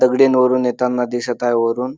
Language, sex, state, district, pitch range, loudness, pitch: Marathi, male, Maharashtra, Dhule, 120-130 Hz, -17 LUFS, 125 Hz